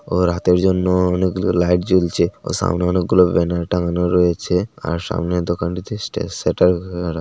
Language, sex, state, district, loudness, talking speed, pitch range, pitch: Bengali, male, West Bengal, Paschim Medinipur, -18 LUFS, 135 wpm, 85-90 Hz, 90 Hz